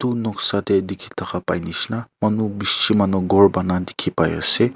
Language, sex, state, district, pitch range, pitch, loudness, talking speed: Nagamese, male, Nagaland, Kohima, 95-110 Hz, 100 Hz, -19 LUFS, 165 wpm